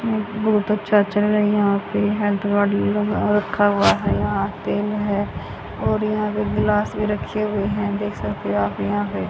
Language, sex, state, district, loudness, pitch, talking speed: Hindi, female, Haryana, Rohtak, -21 LUFS, 205 Hz, 175 wpm